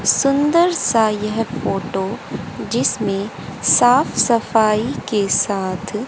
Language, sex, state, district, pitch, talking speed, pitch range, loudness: Hindi, female, Haryana, Jhajjar, 220 Hz, 90 wpm, 210-245 Hz, -17 LUFS